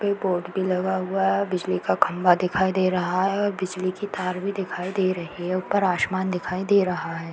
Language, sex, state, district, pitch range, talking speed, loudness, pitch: Hindi, female, Uttar Pradesh, Varanasi, 180-195 Hz, 230 wpm, -24 LUFS, 185 Hz